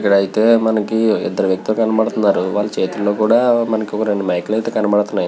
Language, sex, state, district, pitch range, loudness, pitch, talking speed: Telugu, male, Andhra Pradesh, Visakhapatnam, 105-110 Hz, -16 LUFS, 110 Hz, 170 wpm